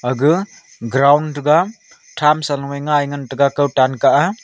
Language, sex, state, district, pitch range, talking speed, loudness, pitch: Wancho, male, Arunachal Pradesh, Longding, 140-155 Hz, 150 wpm, -16 LUFS, 145 Hz